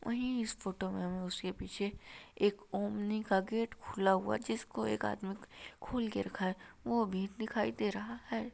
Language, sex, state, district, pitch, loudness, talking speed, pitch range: Hindi, female, Uttar Pradesh, Ghazipur, 200 Hz, -37 LUFS, 175 wpm, 185-225 Hz